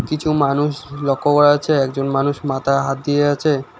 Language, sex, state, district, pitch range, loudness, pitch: Bengali, male, West Bengal, Alipurduar, 135-145 Hz, -17 LUFS, 145 Hz